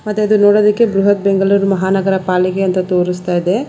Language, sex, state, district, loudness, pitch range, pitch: Kannada, female, Karnataka, Bangalore, -13 LUFS, 185-205 Hz, 195 Hz